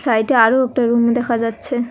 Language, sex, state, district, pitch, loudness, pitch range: Bengali, female, West Bengal, Cooch Behar, 240 Hz, -16 LUFS, 230-250 Hz